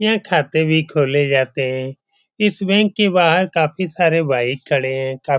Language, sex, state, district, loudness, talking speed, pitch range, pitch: Hindi, male, Uttar Pradesh, Etah, -17 LUFS, 190 wpm, 135-190 Hz, 160 Hz